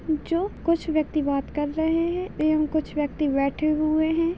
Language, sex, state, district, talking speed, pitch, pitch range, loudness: Hindi, female, Chhattisgarh, Balrampur, 175 wpm, 310 Hz, 300-330 Hz, -24 LUFS